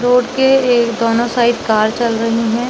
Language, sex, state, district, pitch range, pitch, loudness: Hindi, female, Chhattisgarh, Bilaspur, 230-245 Hz, 235 Hz, -14 LUFS